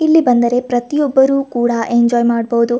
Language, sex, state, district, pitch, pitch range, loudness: Kannada, female, Karnataka, Gulbarga, 240 Hz, 235-270 Hz, -14 LUFS